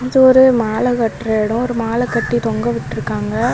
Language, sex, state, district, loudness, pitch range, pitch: Tamil, female, Tamil Nadu, Kanyakumari, -16 LUFS, 225-250 Hz, 235 Hz